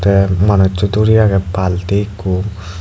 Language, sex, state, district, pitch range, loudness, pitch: Chakma, male, Tripura, Dhalai, 95-100 Hz, -14 LUFS, 95 Hz